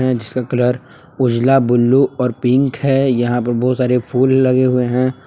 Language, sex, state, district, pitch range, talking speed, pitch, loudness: Hindi, male, Jharkhand, Palamu, 125-130 Hz, 180 wpm, 125 Hz, -15 LUFS